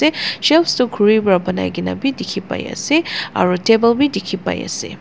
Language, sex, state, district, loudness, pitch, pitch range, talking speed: Nagamese, female, Nagaland, Dimapur, -17 LUFS, 230 Hz, 185-295 Hz, 205 wpm